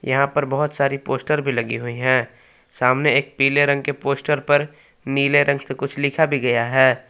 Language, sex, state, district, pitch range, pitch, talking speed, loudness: Hindi, male, Jharkhand, Palamu, 130-145 Hz, 140 Hz, 205 wpm, -19 LUFS